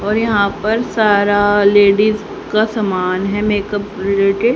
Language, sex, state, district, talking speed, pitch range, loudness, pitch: Hindi, female, Haryana, Rohtak, 145 wpm, 200-215 Hz, -15 LUFS, 205 Hz